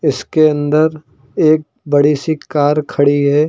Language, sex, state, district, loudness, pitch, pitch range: Hindi, male, Uttar Pradesh, Lucknow, -14 LUFS, 150 Hz, 145-155 Hz